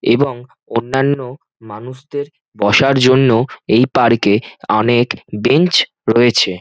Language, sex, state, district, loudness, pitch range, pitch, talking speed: Bengali, male, West Bengal, Jhargram, -14 LUFS, 110-135 Hz, 120 Hz, 100 wpm